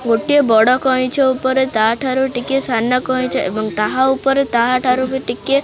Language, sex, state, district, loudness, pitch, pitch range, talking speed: Odia, male, Odisha, Khordha, -15 LUFS, 255 Hz, 235-265 Hz, 150 wpm